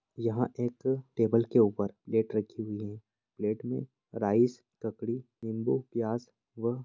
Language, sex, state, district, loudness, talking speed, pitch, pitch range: Hindi, male, Bihar, Jamui, -31 LUFS, 150 wpm, 115 Hz, 110-125 Hz